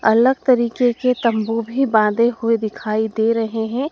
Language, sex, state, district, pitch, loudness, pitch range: Hindi, female, Madhya Pradesh, Dhar, 230 Hz, -18 LUFS, 220-245 Hz